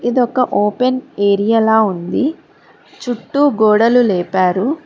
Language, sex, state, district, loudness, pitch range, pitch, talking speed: Telugu, female, Telangana, Hyderabad, -15 LUFS, 200-255 Hz, 225 Hz, 110 wpm